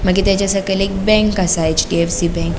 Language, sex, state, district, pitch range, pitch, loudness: Konkani, female, Goa, North and South Goa, 170-195 Hz, 190 Hz, -16 LUFS